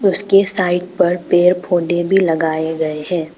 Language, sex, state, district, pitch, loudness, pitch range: Hindi, female, Arunachal Pradesh, Papum Pare, 175 Hz, -16 LUFS, 165-185 Hz